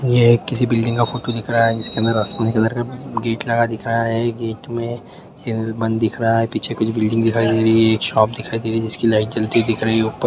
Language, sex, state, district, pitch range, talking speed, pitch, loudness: Hindi, male, West Bengal, Malda, 110-120 Hz, 265 wpm, 115 Hz, -18 LUFS